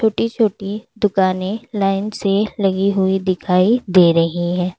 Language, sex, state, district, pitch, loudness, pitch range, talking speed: Hindi, female, Uttar Pradesh, Lalitpur, 195 Hz, -17 LUFS, 185-210 Hz, 140 wpm